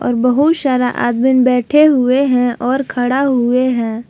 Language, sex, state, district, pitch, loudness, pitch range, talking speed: Hindi, female, Jharkhand, Palamu, 255 Hz, -13 LUFS, 245-265 Hz, 160 wpm